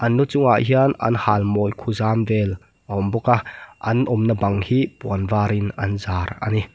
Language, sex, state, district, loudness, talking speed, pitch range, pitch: Mizo, male, Mizoram, Aizawl, -20 LUFS, 185 wpm, 100-120 Hz, 110 Hz